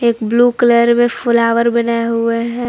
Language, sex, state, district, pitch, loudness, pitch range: Hindi, female, Jharkhand, Palamu, 235 Hz, -13 LUFS, 230-240 Hz